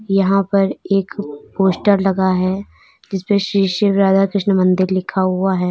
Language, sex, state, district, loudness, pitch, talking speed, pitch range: Hindi, female, Uttar Pradesh, Lalitpur, -16 LUFS, 195 Hz, 160 wpm, 185-200 Hz